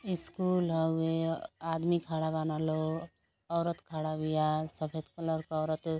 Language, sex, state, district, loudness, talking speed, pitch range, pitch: Bhojpuri, female, Uttar Pradesh, Gorakhpur, -33 LUFS, 140 wpm, 155-165 Hz, 160 Hz